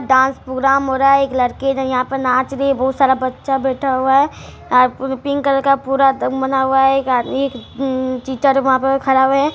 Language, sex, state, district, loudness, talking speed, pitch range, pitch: Hindi, female, Bihar, Araria, -16 LUFS, 240 wpm, 260-275 Hz, 270 Hz